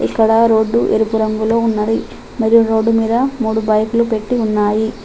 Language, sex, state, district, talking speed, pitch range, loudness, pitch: Telugu, female, Telangana, Adilabad, 140 wpm, 220-230 Hz, -15 LUFS, 220 Hz